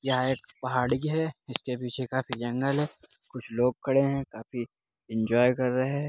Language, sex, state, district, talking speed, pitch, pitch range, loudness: Hindi, male, Uttar Pradesh, Muzaffarnagar, 175 wpm, 130 Hz, 125-135 Hz, -28 LUFS